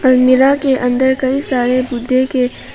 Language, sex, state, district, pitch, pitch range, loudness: Hindi, female, Arunachal Pradesh, Papum Pare, 255 Hz, 255-265 Hz, -14 LUFS